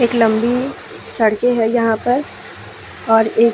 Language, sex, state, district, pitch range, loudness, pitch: Hindi, female, Uttar Pradesh, Muzaffarnagar, 225-245 Hz, -16 LUFS, 230 Hz